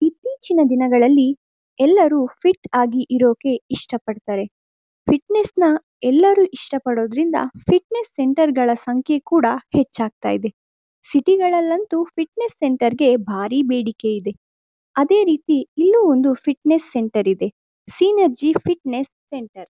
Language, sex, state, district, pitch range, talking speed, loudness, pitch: Kannada, female, Karnataka, Mysore, 245-335 Hz, 120 wpm, -18 LUFS, 280 Hz